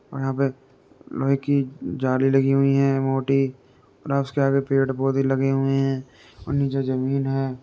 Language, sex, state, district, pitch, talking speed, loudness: Hindi, male, Uttar Pradesh, Jalaun, 135 Hz, 175 wpm, -22 LUFS